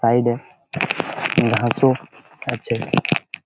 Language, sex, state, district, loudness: Bengali, male, West Bengal, Jalpaiguri, -21 LUFS